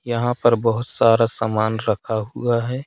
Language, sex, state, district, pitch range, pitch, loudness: Hindi, male, Madhya Pradesh, Katni, 110-120 Hz, 115 Hz, -20 LUFS